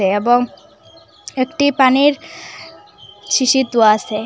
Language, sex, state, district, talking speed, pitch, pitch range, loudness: Bengali, female, Assam, Hailakandi, 85 wpm, 255 Hz, 215-275 Hz, -15 LUFS